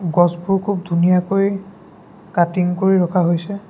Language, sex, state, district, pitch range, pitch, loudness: Assamese, male, Assam, Sonitpur, 175-195 Hz, 185 Hz, -18 LUFS